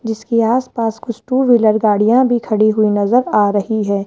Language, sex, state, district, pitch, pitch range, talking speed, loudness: Hindi, male, Rajasthan, Jaipur, 225 Hz, 215-240 Hz, 205 wpm, -14 LUFS